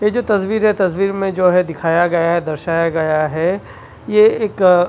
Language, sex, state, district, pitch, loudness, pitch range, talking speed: Hindi, male, Maharashtra, Washim, 180 Hz, -16 LUFS, 165-205 Hz, 220 wpm